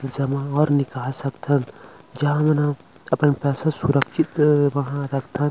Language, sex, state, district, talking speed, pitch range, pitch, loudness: Chhattisgarhi, male, Chhattisgarh, Rajnandgaon, 110 wpm, 140-150 Hz, 140 Hz, -21 LUFS